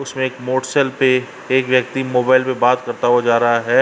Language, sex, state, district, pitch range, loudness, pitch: Hindi, male, Uttar Pradesh, Varanasi, 120-130 Hz, -16 LUFS, 130 Hz